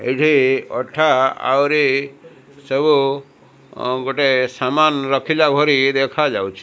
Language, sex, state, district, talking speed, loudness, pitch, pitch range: Odia, male, Odisha, Malkangiri, 100 wpm, -17 LUFS, 135 Hz, 130-145 Hz